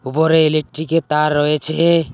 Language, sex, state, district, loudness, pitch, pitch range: Bengali, male, West Bengal, Cooch Behar, -16 LUFS, 155 Hz, 150-160 Hz